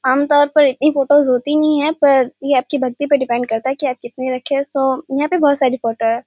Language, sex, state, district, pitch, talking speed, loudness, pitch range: Hindi, male, Bihar, Kishanganj, 275 Hz, 260 wpm, -16 LUFS, 255-290 Hz